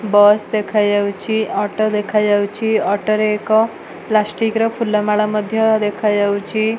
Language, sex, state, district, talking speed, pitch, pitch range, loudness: Odia, female, Odisha, Malkangiri, 105 wpm, 210 Hz, 205-220 Hz, -17 LUFS